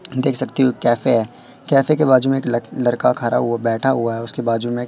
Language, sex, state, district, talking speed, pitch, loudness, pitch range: Hindi, female, Madhya Pradesh, Katni, 260 wpm, 125 Hz, -18 LUFS, 115-135 Hz